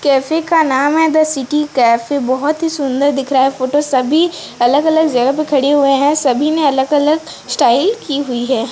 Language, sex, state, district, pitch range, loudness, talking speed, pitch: Hindi, female, Odisha, Sambalpur, 265-310 Hz, -14 LUFS, 195 wpm, 285 Hz